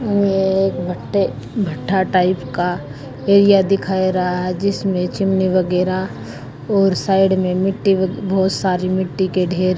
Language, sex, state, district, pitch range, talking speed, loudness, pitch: Hindi, female, Haryana, Jhajjar, 180-195 Hz, 130 wpm, -17 LUFS, 185 Hz